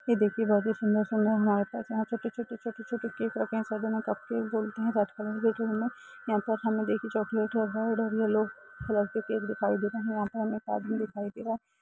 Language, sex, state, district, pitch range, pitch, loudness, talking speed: Hindi, female, Uttar Pradesh, Budaun, 215-225 Hz, 220 Hz, -30 LUFS, 240 wpm